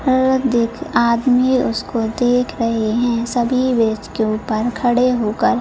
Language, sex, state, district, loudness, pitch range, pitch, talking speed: Hindi, female, Chhattisgarh, Bilaspur, -17 LUFS, 225-250 Hz, 240 Hz, 150 wpm